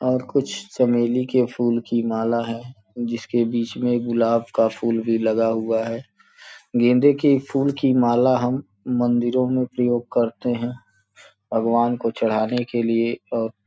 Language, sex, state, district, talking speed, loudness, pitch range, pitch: Hindi, male, Uttar Pradesh, Gorakhpur, 160 wpm, -21 LUFS, 115-125 Hz, 120 Hz